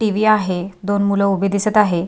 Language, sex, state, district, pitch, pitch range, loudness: Marathi, female, Maharashtra, Sindhudurg, 200 Hz, 190-210 Hz, -17 LUFS